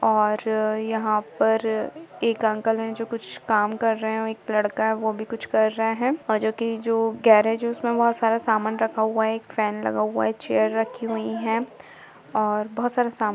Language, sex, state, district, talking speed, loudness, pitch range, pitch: Hindi, female, Uttar Pradesh, Budaun, 220 wpm, -23 LUFS, 215-225 Hz, 220 Hz